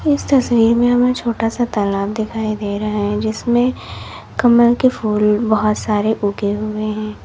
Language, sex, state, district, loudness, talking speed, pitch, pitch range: Hindi, female, Uttar Pradesh, Lalitpur, -17 LUFS, 165 wpm, 220 Hz, 210-240 Hz